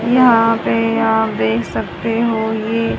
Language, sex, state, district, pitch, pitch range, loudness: Hindi, male, Haryana, Rohtak, 225 Hz, 220-230 Hz, -16 LUFS